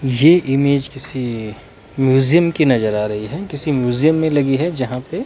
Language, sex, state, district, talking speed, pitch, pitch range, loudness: Hindi, male, Himachal Pradesh, Shimla, 170 wpm, 135 Hz, 125-155 Hz, -17 LUFS